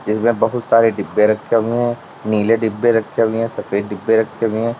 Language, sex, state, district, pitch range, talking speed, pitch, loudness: Hindi, male, Uttar Pradesh, Lalitpur, 110-115 Hz, 210 wpm, 115 Hz, -17 LUFS